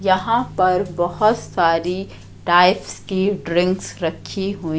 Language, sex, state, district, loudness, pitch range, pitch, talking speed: Hindi, female, Madhya Pradesh, Katni, -19 LUFS, 175-195 Hz, 185 Hz, 115 wpm